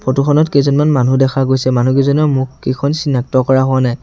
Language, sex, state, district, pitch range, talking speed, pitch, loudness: Assamese, male, Assam, Sonitpur, 130-140 Hz, 180 wpm, 135 Hz, -13 LUFS